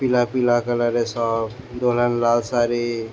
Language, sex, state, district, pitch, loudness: Bengali, male, West Bengal, Jhargram, 120 Hz, -21 LUFS